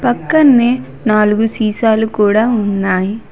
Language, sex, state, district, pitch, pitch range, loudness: Telugu, female, Telangana, Mahabubabad, 220 Hz, 210-235 Hz, -13 LUFS